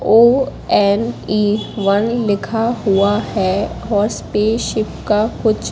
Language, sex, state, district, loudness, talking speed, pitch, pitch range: Hindi, female, Madhya Pradesh, Katni, -16 LUFS, 95 wpm, 210 Hz, 205-225 Hz